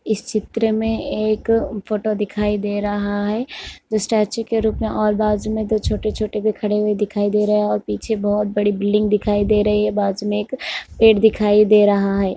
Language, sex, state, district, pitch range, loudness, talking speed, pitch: Hindi, female, Jharkhand, Jamtara, 205-215 Hz, -19 LUFS, 215 wpm, 210 Hz